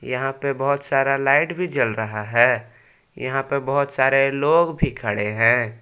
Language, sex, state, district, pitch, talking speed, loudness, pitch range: Hindi, male, Jharkhand, Palamu, 135 Hz, 175 wpm, -20 LUFS, 120-140 Hz